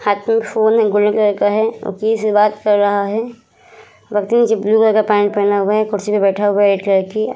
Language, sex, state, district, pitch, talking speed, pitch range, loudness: Hindi, female, Bihar, Vaishali, 210 Hz, 235 wpm, 205-220 Hz, -15 LUFS